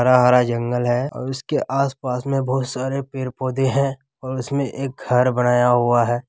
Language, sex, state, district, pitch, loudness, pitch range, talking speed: Hindi, male, Bihar, Kishanganj, 130 Hz, -20 LUFS, 125-135 Hz, 180 wpm